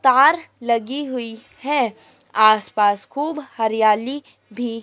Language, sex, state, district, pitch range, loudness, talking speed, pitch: Hindi, female, Madhya Pradesh, Dhar, 220-280 Hz, -20 LUFS, 110 wpm, 240 Hz